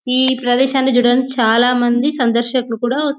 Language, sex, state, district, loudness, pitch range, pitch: Telugu, female, Telangana, Nalgonda, -15 LUFS, 240-260 Hz, 250 Hz